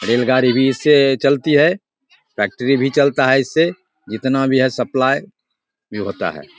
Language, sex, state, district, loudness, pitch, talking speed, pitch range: Hindi, male, Bihar, Begusarai, -16 LUFS, 135 Hz, 155 wpm, 130-145 Hz